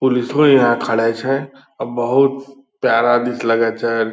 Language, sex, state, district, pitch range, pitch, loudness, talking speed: Angika, male, Bihar, Purnia, 115-135 Hz, 120 Hz, -16 LUFS, 160 wpm